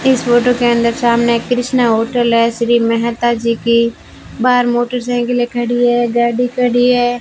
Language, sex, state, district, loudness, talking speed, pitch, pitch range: Hindi, female, Rajasthan, Bikaner, -14 LUFS, 165 wpm, 240 Hz, 235-245 Hz